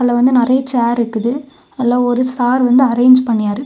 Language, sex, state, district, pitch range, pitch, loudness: Tamil, female, Tamil Nadu, Kanyakumari, 240-255 Hz, 245 Hz, -13 LUFS